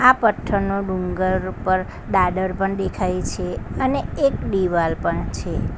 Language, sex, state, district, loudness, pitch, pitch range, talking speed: Gujarati, female, Gujarat, Valsad, -21 LUFS, 190 Hz, 185-200 Hz, 135 wpm